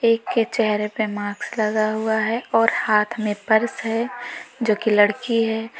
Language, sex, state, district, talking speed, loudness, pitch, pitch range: Hindi, female, Uttar Pradesh, Lalitpur, 175 wpm, -21 LUFS, 220 Hz, 215-230 Hz